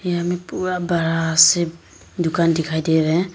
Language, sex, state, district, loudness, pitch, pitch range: Hindi, female, Arunachal Pradesh, Papum Pare, -19 LUFS, 170 Hz, 165-175 Hz